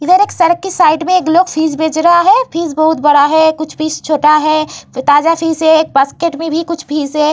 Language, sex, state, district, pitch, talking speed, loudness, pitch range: Hindi, female, Uttar Pradesh, Varanasi, 315 Hz, 235 wpm, -12 LUFS, 305-335 Hz